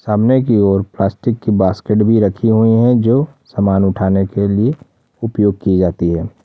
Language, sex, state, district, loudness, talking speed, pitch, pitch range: Hindi, male, Jharkhand, Ranchi, -14 LUFS, 175 wpm, 105 Hz, 95-115 Hz